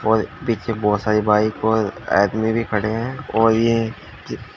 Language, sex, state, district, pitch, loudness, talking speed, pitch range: Hindi, male, Uttar Pradesh, Shamli, 110 Hz, -19 LUFS, 155 wpm, 105-115 Hz